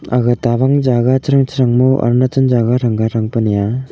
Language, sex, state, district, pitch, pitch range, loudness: Wancho, male, Arunachal Pradesh, Longding, 125 Hz, 120-130 Hz, -14 LUFS